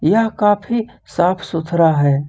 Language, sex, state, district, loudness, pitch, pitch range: Hindi, male, Jharkhand, Ranchi, -17 LUFS, 180 Hz, 160-220 Hz